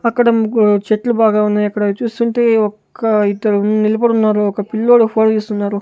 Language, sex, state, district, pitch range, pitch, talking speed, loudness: Telugu, male, Andhra Pradesh, Sri Satya Sai, 210-230 Hz, 215 Hz, 165 wpm, -14 LUFS